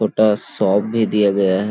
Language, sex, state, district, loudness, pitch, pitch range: Hindi, male, Chhattisgarh, Balrampur, -17 LUFS, 105 Hz, 100-110 Hz